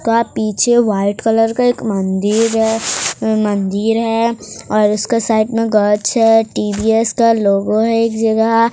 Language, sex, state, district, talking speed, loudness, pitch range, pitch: Hindi, female, Odisha, Sambalpur, 150 wpm, -14 LUFS, 210-230 Hz, 225 Hz